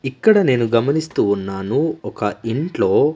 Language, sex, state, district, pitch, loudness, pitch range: Telugu, male, Andhra Pradesh, Manyam, 125 Hz, -18 LUFS, 105-155 Hz